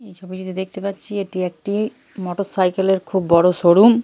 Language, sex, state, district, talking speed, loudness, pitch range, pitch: Bengali, female, West Bengal, Purulia, 195 wpm, -19 LUFS, 185-200 Hz, 190 Hz